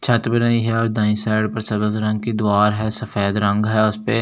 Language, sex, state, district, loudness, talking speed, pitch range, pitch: Hindi, male, Delhi, New Delhi, -19 LUFS, 255 wpm, 105-115 Hz, 110 Hz